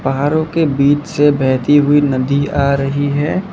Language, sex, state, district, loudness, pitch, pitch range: Hindi, male, Assam, Kamrup Metropolitan, -14 LUFS, 145 Hz, 140-145 Hz